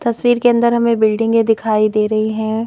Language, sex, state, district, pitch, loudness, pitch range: Hindi, female, Madhya Pradesh, Bhopal, 225 Hz, -15 LUFS, 215-235 Hz